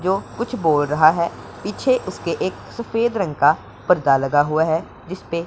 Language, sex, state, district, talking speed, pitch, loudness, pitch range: Hindi, male, Punjab, Pathankot, 175 wpm, 170 Hz, -20 LUFS, 150-200 Hz